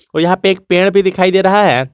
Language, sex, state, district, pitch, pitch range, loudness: Hindi, male, Jharkhand, Garhwa, 190 Hz, 180-195 Hz, -12 LUFS